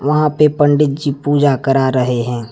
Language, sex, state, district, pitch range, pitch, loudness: Hindi, male, Jharkhand, Deoghar, 130-150 Hz, 140 Hz, -14 LUFS